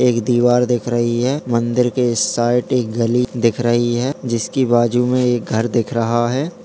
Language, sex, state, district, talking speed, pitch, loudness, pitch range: Hindi, male, Bihar, Jamui, 200 wpm, 120 Hz, -17 LUFS, 120-125 Hz